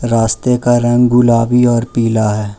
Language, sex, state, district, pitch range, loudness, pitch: Hindi, male, Arunachal Pradesh, Lower Dibang Valley, 115-120 Hz, -12 LUFS, 120 Hz